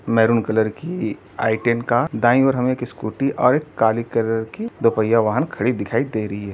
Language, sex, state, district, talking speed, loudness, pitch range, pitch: Hindi, male, Uttar Pradesh, Gorakhpur, 210 wpm, -20 LUFS, 110-130 Hz, 115 Hz